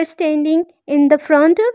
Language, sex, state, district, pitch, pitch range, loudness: English, female, Arunachal Pradesh, Lower Dibang Valley, 315 Hz, 300-340 Hz, -15 LUFS